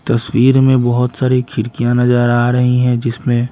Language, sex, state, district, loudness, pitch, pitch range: Hindi, male, Bihar, Patna, -14 LUFS, 125 Hz, 120-130 Hz